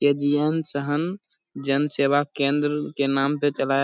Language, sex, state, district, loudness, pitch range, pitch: Hindi, male, Bihar, Purnia, -23 LUFS, 140-150 Hz, 145 Hz